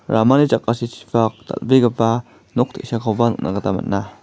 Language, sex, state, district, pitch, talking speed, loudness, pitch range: Garo, male, Meghalaya, West Garo Hills, 115 Hz, 115 wpm, -19 LUFS, 110-120 Hz